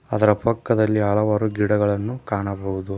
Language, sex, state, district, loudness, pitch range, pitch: Kannada, male, Karnataka, Koppal, -21 LUFS, 100-110 Hz, 105 Hz